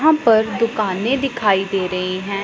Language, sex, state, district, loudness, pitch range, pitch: Hindi, female, Punjab, Pathankot, -18 LUFS, 195-235 Hz, 210 Hz